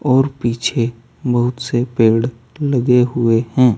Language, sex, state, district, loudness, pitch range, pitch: Hindi, male, Uttar Pradesh, Saharanpur, -17 LUFS, 115-130 Hz, 120 Hz